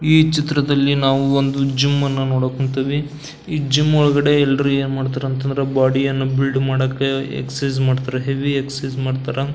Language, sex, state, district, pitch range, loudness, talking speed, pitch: Kannada, male, Karnataka, Belgaum, 135-140 Hz, -18 LUFS, 130 wpm, 135 Hz